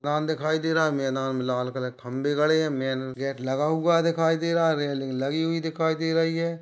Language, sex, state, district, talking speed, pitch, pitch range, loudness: Hindi, male, Maharashtra, Aurangabad, 255 wpm, 150 Hz, 135-160 Hz, -25 LUFS